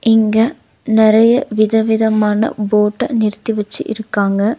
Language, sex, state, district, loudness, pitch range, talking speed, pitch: Tamil, female, Tamil Nadu, Nilgiris, -14 LUFS, 210-225 Hz, 90 wpm, 220 Hz